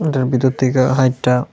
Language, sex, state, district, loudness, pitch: Bengali, male, Tripura, West Tripura, -16 LUFS, 130 Hz